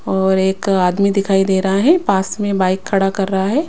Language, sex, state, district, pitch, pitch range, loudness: Hindi, female, Himachal Pradesh, Shimla, 195 Hz, 190-200 Hz, -16 LUFS